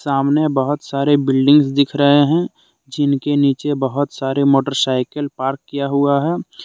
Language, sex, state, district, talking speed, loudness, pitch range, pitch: Hindi, male, Jharkhand, Deoghar, 135 wpm, -16 LUFS, 135-145 Hz, 140 Hz